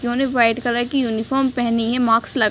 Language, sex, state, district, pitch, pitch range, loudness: Hindi, female, Uttar Pradesh, Ghazipur, 240 Hz, 230-255 Hz, -18 LUFS